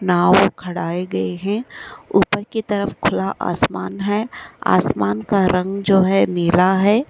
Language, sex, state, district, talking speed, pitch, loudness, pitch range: Bhojpuri, male, Uttar Pradesh, Gorakhpur, 145 wpm, 190 Hz, -18 LUFS, 175-205 Hz